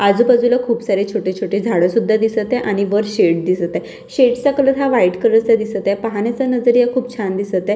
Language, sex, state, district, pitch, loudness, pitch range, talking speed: Marathi, female, Maharashtra, Washim, 225 Hz, -16 LUFS, 200-245 Hz, 215 wpm